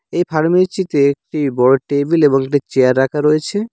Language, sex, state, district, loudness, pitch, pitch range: Bengali, male, West Bengal, Cooch Behar, -15 LUFS, 145 Hz, 135-170 Hz